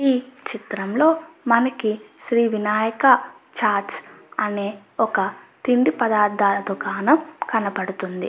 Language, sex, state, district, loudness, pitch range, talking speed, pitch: Telugu, female, Andhra Pradesh, Chittoor, -21 LUFS, 205-265 Hz, 95 wpm, 225 Hz